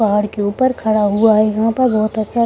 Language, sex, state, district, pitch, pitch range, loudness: Hindi, female, Bihar, Gaya, 215 Hz, 215-230 Hz, -15 LUFS